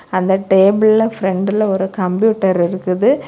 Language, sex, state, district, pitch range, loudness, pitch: Tamil, female, Tamil Nadu, Kanyakumari, 190-210 Hz, -15 LUFS, 190 Hz